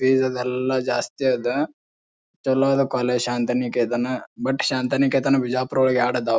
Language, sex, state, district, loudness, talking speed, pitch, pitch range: Kannada, male, Karnataka, Bijapur, -22 LUFS, 160 wpm, 125 Hz, 120-130 Hz